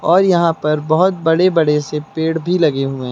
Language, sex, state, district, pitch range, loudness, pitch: Hindi, male, Uttar Pradesh, Lucknow, 150-175 Hz, -15 LUFS, 160 Hz